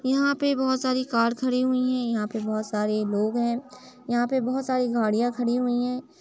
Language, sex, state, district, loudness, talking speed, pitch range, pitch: Hindi, female, Uttar Pradesh, Etah, -25 LUFS, 215 wpm, 230-255 Hz, 250 Hz